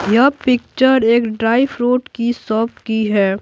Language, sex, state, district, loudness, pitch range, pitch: Hindi, female, Bihar, Patna, -16 LUFS, 220-250 Hz, 235 Hz